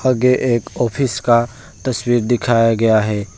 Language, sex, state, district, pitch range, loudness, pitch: Hindi, male, West Bengal, Alipurduar, 115-125 Hz, -16 LUFS, 120 Hz